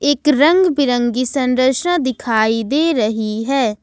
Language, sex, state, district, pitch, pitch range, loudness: Hindi, female, Jharkhand, Ranchi, 260 Hz, 225-290 Hz, -16 LUFS